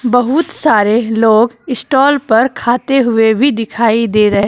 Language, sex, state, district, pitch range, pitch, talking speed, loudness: Hindi, female, Jharkhand, Deoghar, 225-265 Hz, 235 Hz, 150 wpm, -12 LUFS